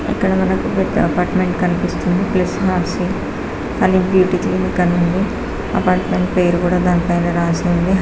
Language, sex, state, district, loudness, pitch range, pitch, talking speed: Telugu, female, Andhra Pradesh, Srikakulam, -17 LUFS, 170-180 Hz, 175 Hz, 120 wpm